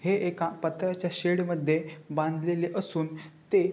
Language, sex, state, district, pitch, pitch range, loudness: Marathi, male, Maharashtra, Chandrapur, 175 Hz, 160-180 Hz, -29 LUFS